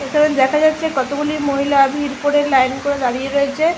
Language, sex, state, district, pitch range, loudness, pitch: Bengali, female, West Bengal, Malda, 275-300 Hz, -16 LUFS, 285 Hz